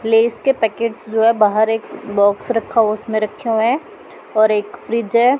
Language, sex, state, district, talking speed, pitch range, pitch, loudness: Hindi, female, Punjab, Pathankot, 175 wpm, 215-235 Hz, 225 Hz, -17 LUFS